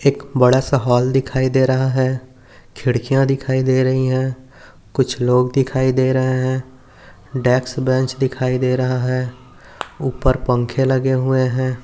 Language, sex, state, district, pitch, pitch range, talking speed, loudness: Hindi, male, Maharashtra, Nagpur, 130 Hz, 125-130 Hz, 150 wpm, -18 LUFS